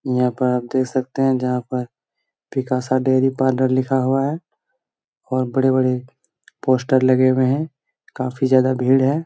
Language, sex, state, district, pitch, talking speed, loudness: Hindi, male, Chhattisgarh, Bastar, 130 Hz, 160 wpm, -19 LUFS